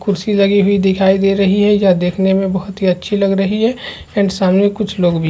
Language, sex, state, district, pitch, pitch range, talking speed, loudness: Hindi, male, Chhattisgarh, Rajnandgaon, 195 Hz, 190-205 Hz, 250 wpm, -14 LUFS